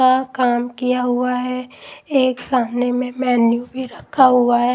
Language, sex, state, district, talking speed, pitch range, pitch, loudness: Hindi, female, Punjab, Pathankot, 175 wpm, 245-255 Hz, 250 Hz, -18 LUFS